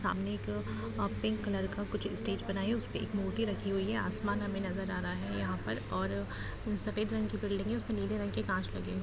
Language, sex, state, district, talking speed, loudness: Hindi, female, Chhattisgarh, Raigarh, 250 wpm, -36 LUFS